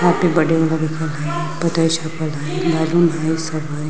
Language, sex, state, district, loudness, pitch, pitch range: Magahi, female, Jharkhand, Palamu, -19 LUFS, 160 Hz, 155-170 Hz